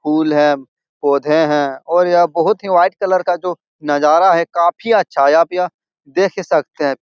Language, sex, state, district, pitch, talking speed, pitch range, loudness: Hindi, male, Bihar, Jahanabad, 170 Hz, 195 wpm, 150-180 Hz, -15 LUFS